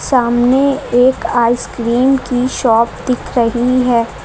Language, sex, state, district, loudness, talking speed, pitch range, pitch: Hindi, female, Uttar Pradesh, Lucknow, -14 LUFS, 115 wpm, 235-255 Hz, 245 Hz